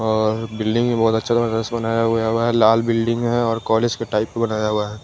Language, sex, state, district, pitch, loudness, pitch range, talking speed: Hindi, male, Chandigarh, Chandigarh, 115 Hz, -19 LUFS, 110-115 Hz, 250 wpm